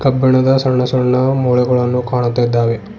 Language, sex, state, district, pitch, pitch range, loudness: Kannada, male, Karnataka, Bidar, 125 Hz, 125-130 Hz, -14 LUFS